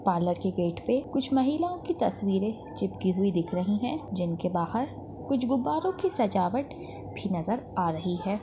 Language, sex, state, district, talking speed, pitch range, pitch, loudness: Hindi, female, Chhattisgarh, Bastar, 170 wpm, 180-265 Hz, 200 Hz, -29 LUFS